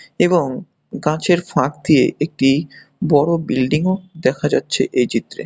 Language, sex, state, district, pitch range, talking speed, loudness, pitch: Bengali, male, West Bengal, Malda, 140-170 Hz, 120 wpm, -18 LUFS, 150 Hz